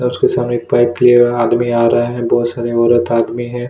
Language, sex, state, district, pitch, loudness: Hindi, male, Chhattisgarh, Kabirdham, 120 Hz, -14 LUFS